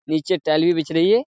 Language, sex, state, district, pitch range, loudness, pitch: Hindi, male, Uttar Pradesh, Budaun, 155-185 Hz, -19 LUFS, 165 Hz